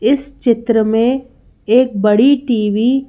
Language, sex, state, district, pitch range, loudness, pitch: Hindi, female, Madhya Pradesh, Bhopal, 220-265 Hz, -14 LUFS, 240 Hz